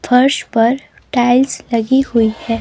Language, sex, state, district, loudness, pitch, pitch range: Hindi, female, Himachal Pradesh, Shimla, -15 LUFS, 245 Hz, 230-265 Hz